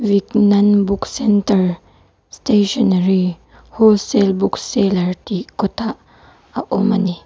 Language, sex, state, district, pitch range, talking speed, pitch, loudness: Mizo, female, Mizoram, Aizawl, 190-210 Hz, 105 wpm, 200 Hz, -16 LUFS